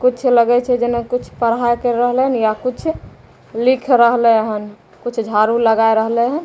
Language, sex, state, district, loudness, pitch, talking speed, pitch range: Maithili, female, Bihar, Begusarai, -16 LUFS, 240 Hz, 175 wpm, 225-250 Hz